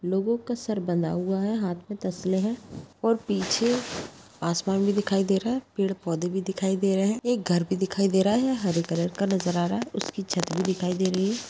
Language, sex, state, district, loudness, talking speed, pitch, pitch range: Hindi, female, Bihar, Begusarai, -26 LUFS, 235 wpm, 195 Hz, 180-210 Hz